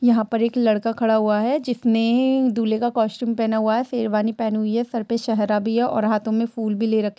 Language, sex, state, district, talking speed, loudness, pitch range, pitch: Hindi, female, Bihar, East Champaran, 250 wpm, -21 LUFS, 220-235 Hz, 225 Hz